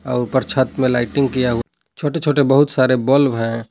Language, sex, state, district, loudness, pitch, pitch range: Hindi, male, Jharkhand, Palamu, -17 LUFS, 130 Hz, 120-140 Hz